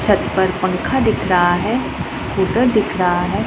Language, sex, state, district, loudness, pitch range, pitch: Hindi, female, Punjab, Pathankot, -17 LUFS, 180-205 Hz, 190 Hz